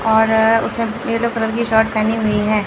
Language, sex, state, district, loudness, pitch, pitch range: Hindi, male, Chandigarh, Chandigarh, -16 LUFS, 220 Hz, 220-225 Hz